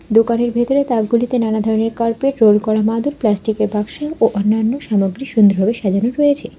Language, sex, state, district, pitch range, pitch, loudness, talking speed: Bengali, female, West Bengal, Alipurduar, 215-240 Hz, 225 Hz, -16 LUFS, 155 wpm